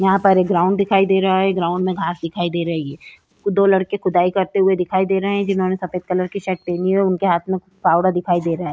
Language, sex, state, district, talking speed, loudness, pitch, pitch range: Hindi, female, Uttar Pradesh, Jyotiba Phule Nagar, 270 wpm, -18 LUFS, 185 Hz, 175-195 Hz